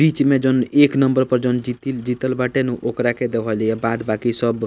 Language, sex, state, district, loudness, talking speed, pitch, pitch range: Bhojpuri, male, Bihar, East Champaran, -19 LUFS, 245 wpm, 125 Hz, 115-130 Hz